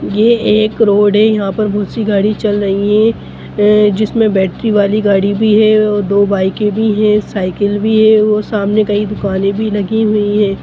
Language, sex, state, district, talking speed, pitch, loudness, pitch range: Hindi, male, Bihar, Gopalganj, 190 wpm, 210 Hz, -12 LUFS, 205-215 Hz